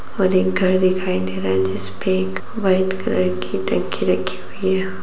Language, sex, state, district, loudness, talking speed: Hindi, female, Bihar, Lakhisarai, -20 LUFS, 205 wpm